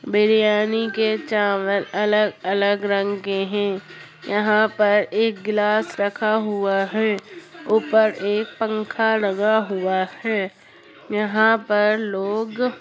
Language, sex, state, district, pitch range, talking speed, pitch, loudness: Hindi, female, Bihar, Saran, 200-220 Hz, 110 wpm, 210 Hz, -20 LUFS